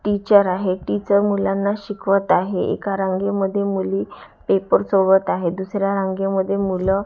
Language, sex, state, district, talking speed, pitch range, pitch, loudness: Marathi, female, Maharashtra, Gondia, 125 wpm, 190-200 Hz, 195 Hz, -19 LUFS